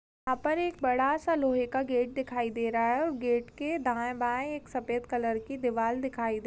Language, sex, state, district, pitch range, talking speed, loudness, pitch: Hindi, female, Chhattisgarh, Raigarh, 240-270 Hz, 215 wpm, -30 LUFS, 250 Hz